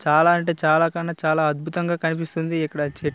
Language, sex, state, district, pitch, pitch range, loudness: Telugu, male, Andhra Pradesh, Visakhapatnam, 160 Hz, 155-170 Hz, -21 LUFS